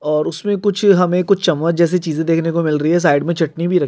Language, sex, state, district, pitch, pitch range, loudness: Hindi, male, Rajasthan, Nagaur, 170 Hz, 160-180 Hz, -16 LUFS